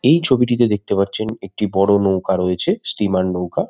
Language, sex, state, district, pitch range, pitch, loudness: Bengali, male, West Bengal, Malda, 95-110 Hz, 100 Hz, -18 LUFS